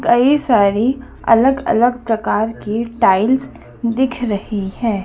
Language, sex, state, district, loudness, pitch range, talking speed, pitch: Hindi, female, Madhya Pradesh, Dhar, -16 LUFS, 215-250 Hz, 120 wpm, 235 Hz